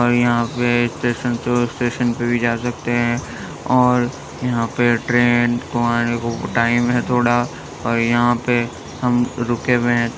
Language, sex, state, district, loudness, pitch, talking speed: Hindi, male, Uttar Pradesh, Jyotiba Phule Nagar, -18 LUFS, 120 Hz, 200 wpm